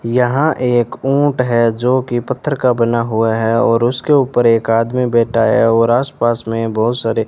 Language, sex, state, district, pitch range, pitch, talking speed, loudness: Hindi, male, Rajasthan, Bikaner, 115-125 Hz, 120 Hz, 200 wpm, -14 LUFS